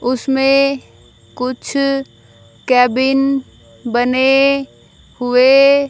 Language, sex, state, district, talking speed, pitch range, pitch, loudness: Hindi, female, Haryana, Jhajjar, 60 wpm, 255-275 Hz, 270 Hz, -14 LUFS